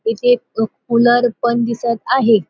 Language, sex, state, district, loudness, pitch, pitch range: Marathi, female, Maharashtra, Dhule, -16 LUFS, 240 Hz, 235-260 Hz